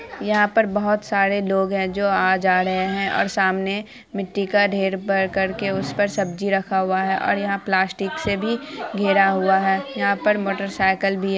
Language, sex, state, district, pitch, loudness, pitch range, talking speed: Hindi, female, Bihar, Araria, 195 Hz, -21 LUFS, 190-205 Hz, 200 wpm